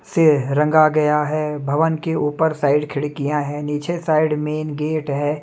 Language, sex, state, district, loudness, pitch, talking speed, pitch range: Hindi, male, Chhattisgarh, Raipur, -19 LUFS, 150 Hz, 165 wpm, 145-155 Hz